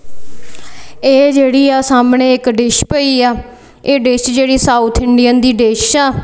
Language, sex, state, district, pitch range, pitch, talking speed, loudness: Punjabi, female, Punjab, Kapurthala, 245-270 Hz, 255 Hz, 155 wpm, -10 LUFS